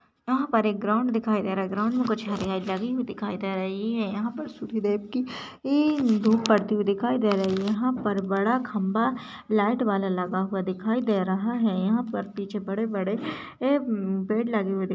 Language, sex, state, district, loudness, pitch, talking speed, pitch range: Hindi, female, Goa, North and South Goa, -26 LUFS, 215 Hz, 205 wpm, 195-235 Hz